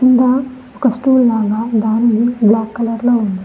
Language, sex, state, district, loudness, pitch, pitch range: Telugu, female, Telangana, Mahabubabad, -14 LUFS, 235 Hz, 220-250 Hz